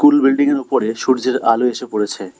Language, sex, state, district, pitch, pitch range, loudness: Bengali, male, West Bengal, Alipurduar, 130 Hz, 115-135 Hz, -16 LUFS